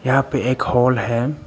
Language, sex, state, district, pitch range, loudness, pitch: Hindi, male, Arunachal Pradesh, Papum Pare, 125-135 Hz, -18 LUFS, 130 Hz